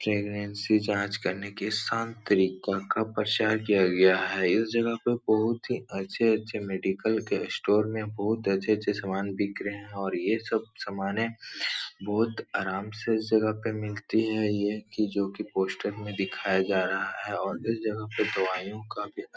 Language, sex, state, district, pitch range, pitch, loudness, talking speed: Hindi, male, Uttar Pradesh, Etah, 100-110 Hz, 105 Hz, -28 LUFS, 180 wpm